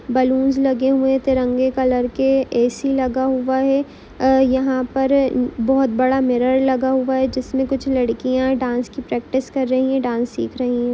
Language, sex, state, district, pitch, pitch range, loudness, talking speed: Hindi, female, Goa, North and South Goa, 260 Hz, 255-265 Hz, -18 LUFS, 180 wpm